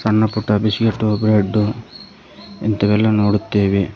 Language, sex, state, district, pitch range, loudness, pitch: Kannada, male, Karnataka, Koppal, 105-110 Hz, -17 LUFS, 105 Hz